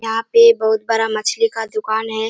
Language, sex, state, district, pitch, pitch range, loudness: Hindi, female, Bihar, Kishanganj, 225 Hz, 220-225 Hz, -16 LUFS